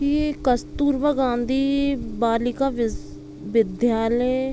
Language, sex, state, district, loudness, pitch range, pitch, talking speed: Hindi, female, Jharkhand, Sahebganj, -22 LUFS, 230-275 Hz, 250 Hz, 80 wpm